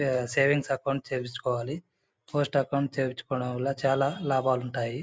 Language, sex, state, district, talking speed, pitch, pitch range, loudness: Telugu, male, Andhra Pradesh, Anantapur, 120 wpm, 135 Hz, 125-140 Hz, -28 LUFS